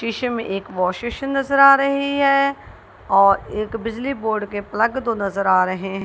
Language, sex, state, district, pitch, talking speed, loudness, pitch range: Hindi, female, Punjab, Kapurthala, 225 Hz, 200 wpm, -19 LUFS, 195-275 Hz